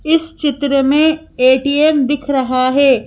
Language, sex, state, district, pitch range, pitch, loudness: Hindi, female, Madhya Pradesh, Bhopal, 265-305 Hz, 280 Hz, -14 LUFS